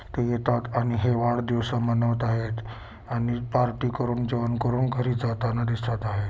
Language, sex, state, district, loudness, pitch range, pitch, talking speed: Marathi, male, Maharashtra, Sindhudurg, -26 LUFS, 115-120 Hz, 120 Hz, 150 wpm